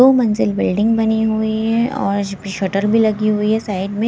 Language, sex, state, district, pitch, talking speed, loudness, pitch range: Hindi, female, Himachal Pradesh, Shimla, 215 Hz, 205 wpm, -17 LUFS, 195-225 Hz